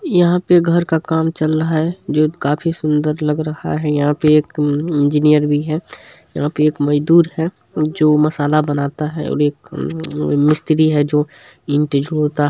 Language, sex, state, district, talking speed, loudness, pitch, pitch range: Hindi, male, Bihar, Supaul, 195 wpm, -16 LUFS, 150 Hz, 150-160 Hz